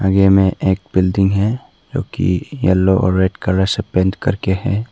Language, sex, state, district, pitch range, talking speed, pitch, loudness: Hindi, male, Arunachal Pradesh, Papum Pare, 95-100 Hz, 185 wpm, 95 Hz, -16 LUFS